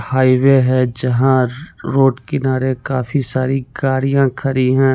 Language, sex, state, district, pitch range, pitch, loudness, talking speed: Hindi, male, Chandigarh, Chandigarh, 130-135 Hz, 130 Hz, -16 LUFS, 120 wpm